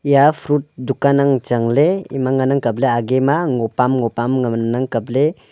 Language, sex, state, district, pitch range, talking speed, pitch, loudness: Wancho, male, Arunachal Pradesh, Longding, 120-140 Hz, 140 wpm, 130 Hz, -17 LUFS